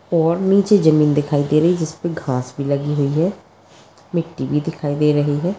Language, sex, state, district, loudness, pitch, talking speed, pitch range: Hindi, female, Maharashtra, Pune, -18 LUFS, 155 Hz, 205 wpm, 145-170 Hz